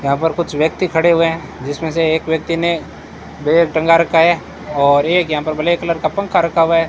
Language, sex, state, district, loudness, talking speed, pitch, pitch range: Hindi, male, Rajasthan, Bikaner, -15 LUFS, 235 wpm, 165 Hz, 155-170 Hz